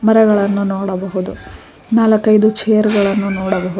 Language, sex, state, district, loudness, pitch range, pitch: Kannada, female, Karnataka, Koppal, -14 LUFS, 195-215 Hz, 200 Hz